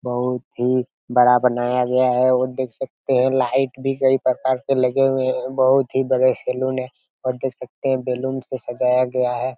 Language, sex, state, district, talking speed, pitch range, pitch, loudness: Hindi, male, Chhattisgarh, Raigarh, 200 wpm, 125-130 Hz, 130 Hz, -20 LUFS